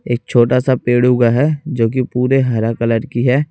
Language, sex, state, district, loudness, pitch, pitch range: Hindi, male, Chhattisgarh, Raipur, -15 LUFS, 125 Hz, 120-130 Hz